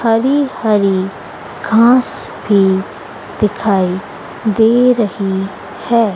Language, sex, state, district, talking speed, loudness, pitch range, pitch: Hindi, female, Madhya Pradesh, Dhar, 80 wpm, -14 LUFS, 195-230 Hz, 215 Hz